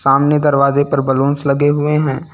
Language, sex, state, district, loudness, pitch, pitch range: Hindi, male, Uttar Pradesh, Lucknow, -14 LUFS, 140 Hz, 140-150 Hz